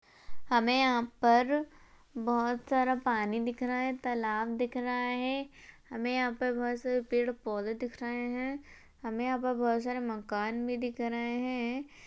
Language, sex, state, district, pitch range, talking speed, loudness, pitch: Hindi, female, Maharashtra, Chandrapur, 235-255 Hz, 160 wpm, -32 LUFS, 245 Hz